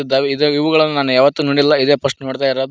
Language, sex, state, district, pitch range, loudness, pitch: Kannada, male, Karnataka, Koppal, 135-150 Hz, -15 LUFS, 140 Hz